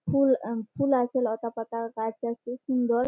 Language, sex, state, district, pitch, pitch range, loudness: Bengali, female, West Bengal, Malda, 235 Hz, 230-255 Hz, -28 LUFS